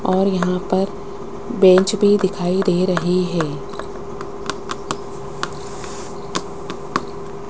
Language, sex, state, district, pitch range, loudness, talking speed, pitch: Hindi, female, Rajasthan, Jaipur, 185-200 Hz, -20 LUFS, 70 wpm, 190 Hz